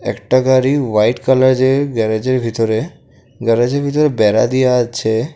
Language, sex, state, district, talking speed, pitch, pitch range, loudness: Bengali, male, Assam, Kamrup Metropolitan, 125 wpm, 125 Hz, 115-130 Hz, -14 LUFS